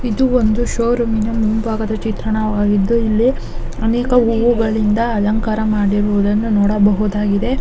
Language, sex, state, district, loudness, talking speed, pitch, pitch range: Kannada, male, Karnataka, Shimoga, -16 LUFS, 105 wpm, 220 Hz, 210-235 Hz